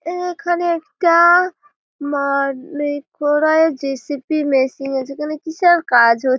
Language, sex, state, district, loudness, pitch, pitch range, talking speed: Bengali, female, West Bengal, Malda, -17 LUFS, 295 Hz, 275-340 Hz, 105 wpm